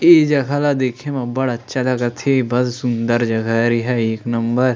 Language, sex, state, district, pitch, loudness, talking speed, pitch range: Chhattisgarhi, male, Chhattisgarh, Sarguja, 125 Hz, -18 LUFS, 215 wpm, 120-135 Hz